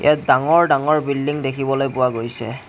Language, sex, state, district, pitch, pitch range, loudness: Assamese, male, Assam, Kamrup Metropolitan, 135 Hz, 125-150 Hz, -18 LUFS